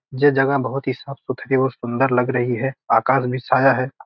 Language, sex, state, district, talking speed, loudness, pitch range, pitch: Hindi, male, Bihar, Gopalganj, 205 wpm, -20 LUFS, 125-135 Hz, 130 Hz